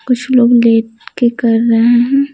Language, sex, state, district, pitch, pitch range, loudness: Hindi, female, Bihar, Patna, 240 Hz, 230-250 Hz, -11 LUFS